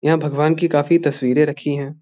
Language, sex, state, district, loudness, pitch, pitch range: Hindi, male, Bihar, Bhagalpur, -18 LUFS, 150 Hz, 145-155 Hz